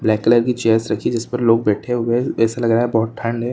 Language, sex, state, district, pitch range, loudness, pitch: Hindi, male, Chhattisgarh, Raigarh, 115-120 Hz, -18 LUFS, 115 Hz